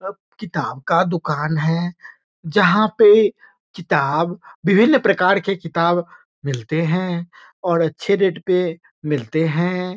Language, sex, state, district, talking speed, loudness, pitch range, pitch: Hindi, male, Bihar, Muzaffarpur, 115 wpm, -18 LUFS, 160-195 Hz, 175 Hz